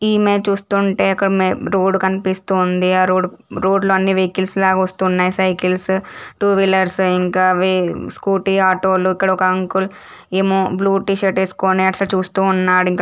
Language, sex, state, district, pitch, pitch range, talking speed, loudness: Telugu, female, Andhra Pradesh, Srikakulam, 190 Hz, 185-195 Hz, 155 wpm, -16 LUFS